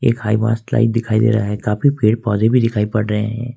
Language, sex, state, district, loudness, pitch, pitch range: Hindi, male, Jharkhand, Ranchi, -17 LUFS, 110 Hz, 105-115 Hz